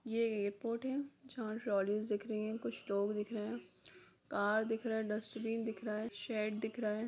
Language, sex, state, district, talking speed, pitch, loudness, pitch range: Hindi, female, Bihar, Jahanabad, 210 wpm, 220 Hz, -39 LUFS, 210-230 Hz